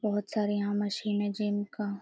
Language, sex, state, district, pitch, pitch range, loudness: Hindi, female, Uttar Pradesh, Deoria, 205 Hz, 205-210 Hz, -31 LUFS